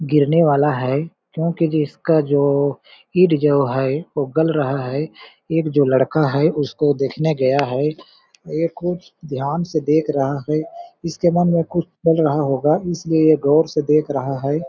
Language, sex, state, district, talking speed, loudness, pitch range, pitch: Hindi, male, Chhattisgarh, Balrampur, 170 wpm, -18 LUFS, 140-165 Hz, 150 Hz